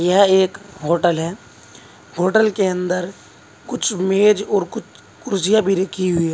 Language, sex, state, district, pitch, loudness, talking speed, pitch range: Hindi, male, Uttar Pradesh, Saharanpur, 185 Hz, -18 LUFS, 150 wpm, 170-200 Hz